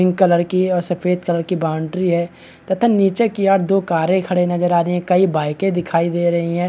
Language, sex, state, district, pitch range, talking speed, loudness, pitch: Hindi, male, Chhattisgarh, Balrampur, 170-185 Hz, 235 wpm, -17 LUFS, 180 Hz